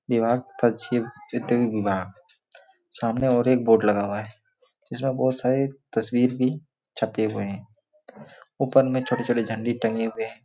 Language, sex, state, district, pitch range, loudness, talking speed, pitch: Hindi, male, Chhattisgarh, Bastar, 110-130 Hz, -24 LUFS, 130 wpm, 120 Hz